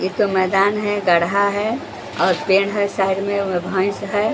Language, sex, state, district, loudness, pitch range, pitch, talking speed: Hindi, female, Bihar, Patna, -18 LUFS, 190-205 Hz, 200 Hz, 195 wpm